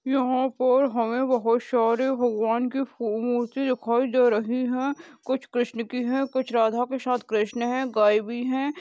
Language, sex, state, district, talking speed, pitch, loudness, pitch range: Hindi, female, Goa, North and South Goa, 185 wpm, 250 Hz, -24 LUFS, 235-260 Hz